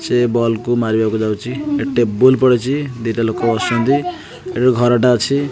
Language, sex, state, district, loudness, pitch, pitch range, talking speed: Odia, male, Odisha, Khordha, -16 LUFS, 120 Hz, 115-130 Hz, 165 wpm